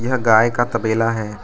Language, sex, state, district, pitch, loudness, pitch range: Hindi, male, Arunachal Pradesh, Lower Dibang Valley, 115 Hz, -17 LUFS, 110-120 Hz